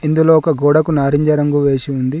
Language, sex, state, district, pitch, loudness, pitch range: Telugu, male, Telangana, Adilabad, 145 Hz, -14 LUFS, 140-155 Hz